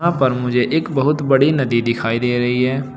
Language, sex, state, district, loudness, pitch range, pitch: Hindi, male, Uttar Pradesh, Saharanpur, -17 LUFS, 120-140 Hz, 130 Hz